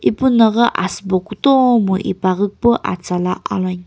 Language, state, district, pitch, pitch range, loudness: Sumi, Nagaland, Kohima, 200 Hz, 185-235 Hz, -16 LUFS